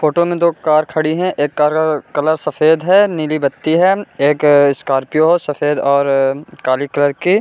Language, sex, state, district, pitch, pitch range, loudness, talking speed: Hindi, male, Bihar, Gopalganj, 155 Hz, 145-165 Hz, -14 LUFS, 180 wpm